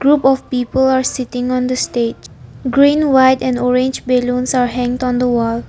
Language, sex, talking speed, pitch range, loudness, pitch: English, female, 190 wpm, 245-260 Hz, -15 LUFS, 255 Hz